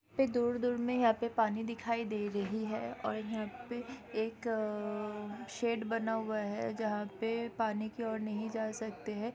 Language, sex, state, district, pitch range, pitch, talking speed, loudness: Hindi, female, Goa, North and South Goa, 215-235 Hz, 225 Hz, 180 wpm, -36 LUFS